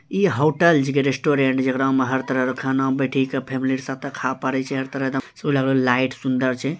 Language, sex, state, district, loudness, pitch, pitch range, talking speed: Maithili, male, Bihar, Bhagalpur, -21 LUFS, 135 Hz, 130-140 Hz, 185 wpm